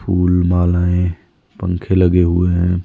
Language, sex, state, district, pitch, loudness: Hindi, male, Himachal Pradesh, Shimla, 90 Hz, -16 LUFS